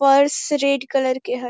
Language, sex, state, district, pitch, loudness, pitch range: Hindi, female, Bihar, Darbhanga, 275 Hz, -19 LUFS, 260-280 Hz